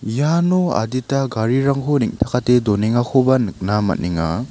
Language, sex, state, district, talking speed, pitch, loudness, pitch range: Garo, male, Meghalaya, South Garo Hills, 95 wpm, 125 Hz, -18 LUFS, 110-135 Hz